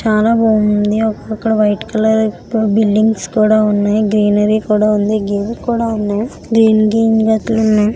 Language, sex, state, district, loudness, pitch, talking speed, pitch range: Telugu, female, Andhra Pradesh, Visakhapatnam, -14 LUFS, 215 Hz, 105 wpm, 210-220 Hz